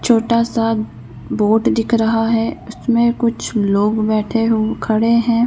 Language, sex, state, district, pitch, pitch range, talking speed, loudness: Hindi, female, Madhya Pradesh, Bhopal, 225 Hz, 215-230 Hz, 130 wpm, -16 LUFS